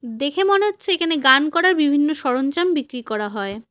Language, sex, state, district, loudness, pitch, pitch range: Bengali, female, West Bengal, Cooch Behar, -19 LUFS, 290 Hz, 250-345 Hz